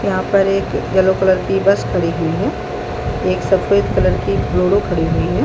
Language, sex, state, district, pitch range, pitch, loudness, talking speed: Hindi, female, Chhattisgarh, Balrampur, 190-195 Hz, 195 Hz, -16 LUFS, 200 wpm